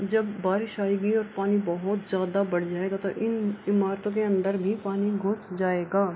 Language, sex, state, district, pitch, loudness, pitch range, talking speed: Hindi, female, Bihar, Kishanganj, 200 Hz, -27 LUFS, 190-205 Hz, 185 wpm